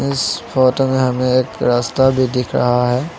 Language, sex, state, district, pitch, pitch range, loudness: Hindi, male, Assam, Sonitpur, 130 Hz, 125-130 Hz, -16 LUFS